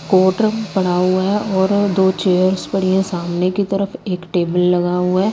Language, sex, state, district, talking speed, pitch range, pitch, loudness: Hindi, female, Punjab, Kapurthala, 190 wpm, 180-195 Hz, 190 Hz, -17 LUFS